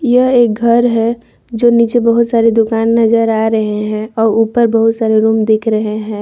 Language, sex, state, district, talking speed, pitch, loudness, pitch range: Hindi, female, Jharkhand, Palamu, 205 wpm, 225 Hz, -12 LUFS, 220-235 Hz